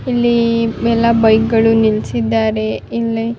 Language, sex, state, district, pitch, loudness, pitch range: Kannada, female, Karnataka, Raichur, 225 Hz, -14 LUFS, 210-230 Hz